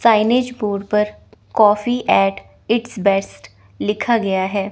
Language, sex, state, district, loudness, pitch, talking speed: Hindi, female, Chandigarh, Chandigarh, -18 LUFS, 205 Hz, 125 wpm